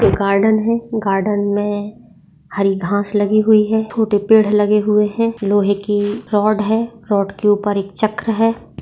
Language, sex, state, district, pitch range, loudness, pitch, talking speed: Hindi, female, Bihar, Saharsa, 205-220 Hz, -16 LUFS, 210 Hz, 165 wpm